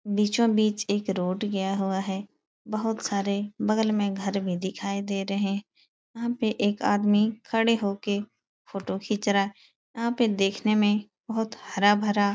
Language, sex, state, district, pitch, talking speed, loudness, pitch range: Hindi, female, Uttar Pradesh, Etah, 205 Hz, 170 wpm, -26 LUFS, 200-215 Hz